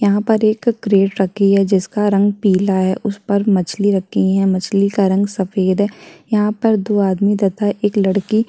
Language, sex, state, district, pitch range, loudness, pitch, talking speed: Hindi, female, Chhattisgarh, Kabirdham, 195-210 Hz, -16 LUFS, 200 Hz, 200 wpm